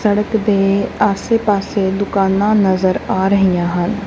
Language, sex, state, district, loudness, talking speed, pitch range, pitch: Punjabi, female, Punjab, Kapurthala, -15 LUFS, 130 wpm, 190-210 Hz, 200 Hz